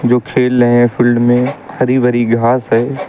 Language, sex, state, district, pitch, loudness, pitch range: Hindi, male, Uttar Pradesh, Lucknow, 125 Hz, -12 LUFS, 120-125 Hz